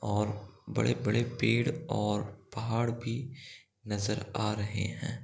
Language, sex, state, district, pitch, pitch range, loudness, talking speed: Hindi, male, Bihar, East Champaran, 105 Hz, 105-120 Hz, -32 LUFS, 135 wpm